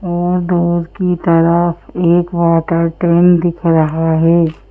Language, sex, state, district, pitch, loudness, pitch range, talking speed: Hindi, female, Madhya Pradesh, Bhopal, 170 Hz, -13 LUFS, 165-175 Hz, 125 wpm